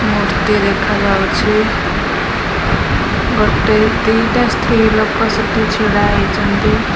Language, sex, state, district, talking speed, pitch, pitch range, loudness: Odia, female, Odisha, Khordha, 85 wpm, 220 Hz, 215-225 Hz, -14 LUFS